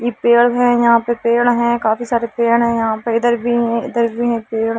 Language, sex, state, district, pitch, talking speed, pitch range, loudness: Hindi, female, Jharkhand, Sahebganj, 235 Hz, 265 wpm, 230-240 Hz, -15 LUFS